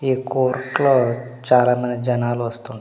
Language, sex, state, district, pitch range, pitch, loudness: Telugu, male, Andhra Pradesh, Manyam, 120-130 Hz, 125 Hz, -19 LUFS